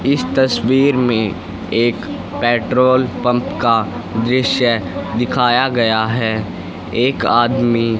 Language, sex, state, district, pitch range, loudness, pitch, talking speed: Hindi, male, Haryana, Rohtak, 110-125 Hz, -16 LUFS, 120 Hz, 95 wpm